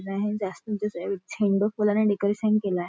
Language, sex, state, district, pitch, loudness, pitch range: Marathi, female, Maharashtra, Nagpur, 205 Hz, -26 LUFS, 195-210 Hz